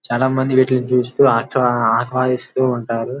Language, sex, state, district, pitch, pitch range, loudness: Telugu, male, Andhra Pradesh, Guntur, 125 Hz, 120-130 Hz, -17 LUFS